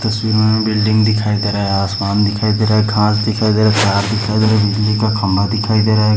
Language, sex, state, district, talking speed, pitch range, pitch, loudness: Hindi, male, Maharashtra, Aurangabad, 300 wpm, 105-110 Hz, 105 Hz, -14 LUFS